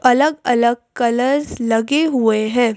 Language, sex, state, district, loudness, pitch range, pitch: Hindi, female, Madhya Pradesh, Bhopal, -17 LUFS, 235-265 Hz, 245 Hz